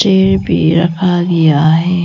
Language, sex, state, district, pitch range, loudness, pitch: Hindi, female, Arunachal Pradesh, Lower Dibang Valley, 160-185 Hz, -11 LUFS, 175 Hz